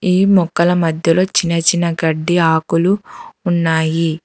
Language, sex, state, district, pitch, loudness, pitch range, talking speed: Telugu, female, Telangana, Hyderabad, 170 Hz, -15 LUFS, 165-180 Hz, 115 wpm